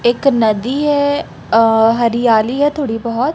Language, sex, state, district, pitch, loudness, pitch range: Hindi, female, Chhattisgarh, Raipur, 240 Hz, -14 LUFS, 225-285 Hz